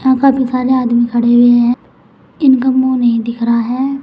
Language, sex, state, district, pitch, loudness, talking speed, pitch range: Hindi, female, Uttar Pradesh, Saharanpur, 250 Hz, -12 LUFS, 195 wpm, 240-260 Hz